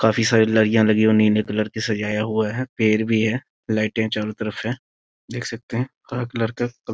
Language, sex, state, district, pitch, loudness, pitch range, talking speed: Hindi, male, Bihar, Muzaffarpur, 110 Hz, -21 LUFS, 110-115 Hz, 215 wpm